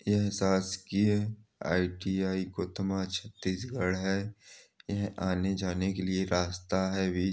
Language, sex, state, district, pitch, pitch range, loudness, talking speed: Hindi, male, Chhattisgarh, Korba, 95 Hz, 95-100 Hz, -31 LUFS, 130 wpm